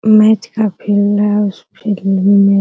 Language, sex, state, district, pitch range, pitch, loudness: Hindi, female, Bihar, Araria, 200-215 Hz, 205 Hz, -13 LUFS